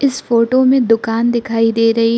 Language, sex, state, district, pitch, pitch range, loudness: Hindi, female, Arunachal Pradesh, Lower Dibang Valley, 230 Hz, 230-250 Hz, -14 LUFS